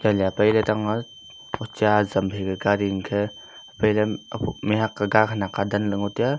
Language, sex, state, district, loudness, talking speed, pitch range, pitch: Wancho, male, Arunachal Pradesh, Longding, -23 LUFS, 170 wpm, 100-110 Hz, 105 Hz